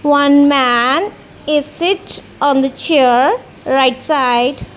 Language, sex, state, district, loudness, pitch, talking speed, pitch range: English, female, Punjab, Kapurthala, -13 LUFS, 285 Hz, 115 wpm, 260-295 Hz